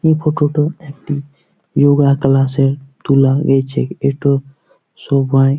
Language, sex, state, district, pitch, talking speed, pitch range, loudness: Bengali, male, West Bengal, Jalpaiguri, 140 Hz, 105 wpm, 135-150 Hz, -15 LUFS